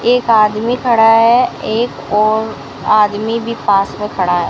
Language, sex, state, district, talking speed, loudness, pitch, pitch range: Hindi, female, Rajasthan, Bikaner, 160 wpm, -13 LUFS, 220 Hz, 210-235 Hz